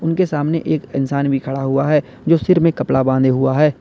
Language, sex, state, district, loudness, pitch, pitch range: Hindi, male, Uttar Pradesh, Lalitpur, -17 LUFS, 140 Hz, 135-165 Hz